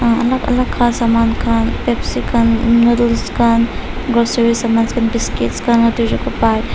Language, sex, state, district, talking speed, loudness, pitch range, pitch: Nagamese, female, Nagaland, Dimapur, 150 wpm, -15 LUFS, 230-235 Hz, 235 Hz